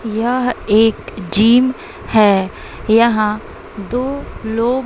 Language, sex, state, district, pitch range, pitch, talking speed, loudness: Hindi, female, Bihar, West Champaran, 215-250 Hz, 225 Hz, 85 wpm, -15 LUFS